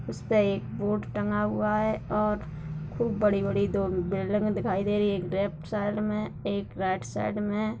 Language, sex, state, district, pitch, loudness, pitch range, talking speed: Hindi, female, Bihar, Darbhanga, 200 Hz, -28 LUFS, 180-210 Hz, 185 wpm